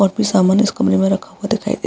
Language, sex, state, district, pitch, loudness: Hindi, female, Bihar, Vaishali, 190 Hz, -16 LUFS